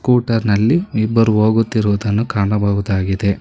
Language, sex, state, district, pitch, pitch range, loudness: Kannada, male, Karnataka, Bangalore, 110 Hz, 100-115 Hz, -16 LUFS